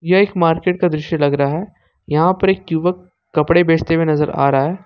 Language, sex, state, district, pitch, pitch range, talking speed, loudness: Hindi, male, Jharkhand, Ranchi, 165 Hz, 155-180 Hz, 235 wpm, -16 LUFS